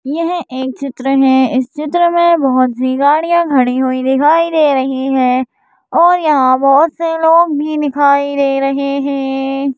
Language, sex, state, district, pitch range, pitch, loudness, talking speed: Hindi, female, Madhya Pradesh, Bhopal, 265-315 Hz, 275 Hz, -13 LUFS, 160 wpm